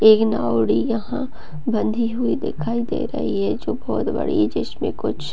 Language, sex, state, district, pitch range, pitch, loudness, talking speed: Hindi, female, Bihar, Gopalganj, 155-235 Hz, 220 Hz, -22 LUFS, 170 wpm